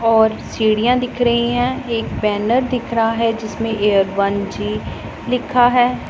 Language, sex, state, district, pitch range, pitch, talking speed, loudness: Hindi, female, Punjab, Pathankot, 205-245 Hz, 225 Hz, 155 wpm, -17 LUFS